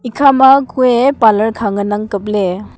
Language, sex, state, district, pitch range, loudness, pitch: Wancho, female, Arunachal Pradesh, Longding, 205-260 Hz, -12 LUFS, 225 Hz